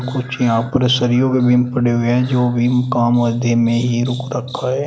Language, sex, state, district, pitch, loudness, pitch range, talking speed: Hindi, male, Uttar Pradesh, Shamli, 125 Hz, -16 LUFS, 120-125 Hz, 220 wpm